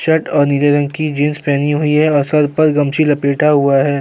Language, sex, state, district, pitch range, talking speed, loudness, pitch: Hindi, male, Uttar Pradesh, Jyotiba Phule Nagar, 145-150 Hz, 240 wpm, -14 LUFS, 145 Hz